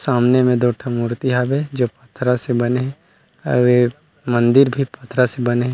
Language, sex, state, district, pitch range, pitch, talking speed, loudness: Chhattisgarhi, male, Chhattisgarh, Rajnandgaon, 120-130 Hz, 125 Hz, 210 wpm, -18 LUFS